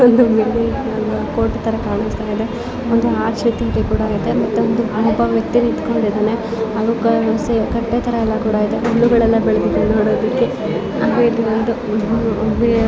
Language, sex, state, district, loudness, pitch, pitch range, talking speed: Kannada, female, Karnataka, Bijapur, -17 LUFS, 225 Hz, 220-235 Hz, 135 wpm